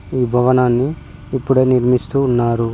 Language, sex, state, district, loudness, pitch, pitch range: Telugu, male, Telangana, Mahabubabad, -16 LUFS, 125 Hz, 120-130 Hz